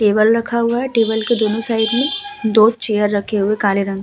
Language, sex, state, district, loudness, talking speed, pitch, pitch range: Hindi, female, Uttar Pradesh, Hamirpur, -16 LUFS, 255 wpm, 220 Hz, 210-235 Hz